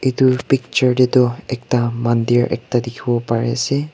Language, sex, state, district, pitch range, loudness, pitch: Nagamese, male, Nagaland, Kohima, 120-130 Hz, -17 LUFS, 125 Hz